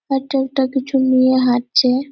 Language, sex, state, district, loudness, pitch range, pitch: Bengali, female, West Bengal, Purulia, -16 LUFS, 255-270 Hz, 260 Hz